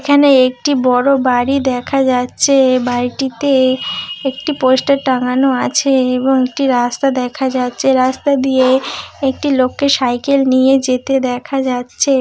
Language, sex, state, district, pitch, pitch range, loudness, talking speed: Bengali, female, West Bengal, Malda, 260 Hz, 255-275 Hz, -14 LUFS, 125 wpm